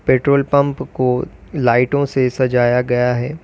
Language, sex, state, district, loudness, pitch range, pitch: Hindi, male, Uttar Pradesh, Lalitpur, -16 LUFS, 125-140 Hz, 130 Hz